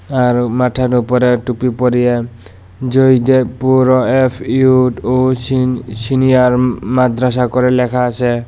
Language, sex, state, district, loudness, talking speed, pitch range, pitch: Bengali, male, Tripura, Unakoti, -13 LUFS, 115 wpm, 125-130 Hz, 125 Hz